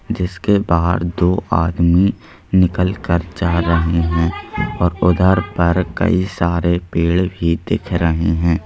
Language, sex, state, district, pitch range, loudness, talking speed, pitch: Hindi, male, Madhya Pradesh, Bhopal, 85-90 Hz, -17 LUFS, 130 wpm, 85 Hz